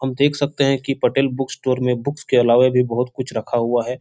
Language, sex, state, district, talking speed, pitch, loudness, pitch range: Hindi, male, Bihar, Supaul, 270 wpm, 130 Hz, -19 LUFS, 125-135 Hz